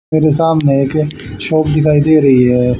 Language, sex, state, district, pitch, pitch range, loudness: Hindi, male, Haryana, Charkhi Dadri, 150 Hz, 135-155 Hz, -12 LUFS